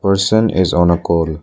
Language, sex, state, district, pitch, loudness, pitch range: English, male, Arunachal Pradesh, Lower Dibang Valley, 90 Hz, -14 LUFS, 85-100 Hz